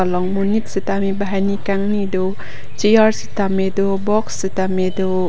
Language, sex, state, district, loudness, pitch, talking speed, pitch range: Karbi, female, Assam, Karbi Anglong, -18 LUFS, 195 Hz, 135 wpm, 185-200 Hz